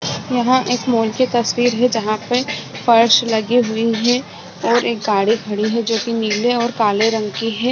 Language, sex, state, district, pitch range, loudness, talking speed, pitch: Hindi, female, Chhattisgarh, Balrampur, 220-245 Hz, -17 LUFS, 165 wpm, 230 Hz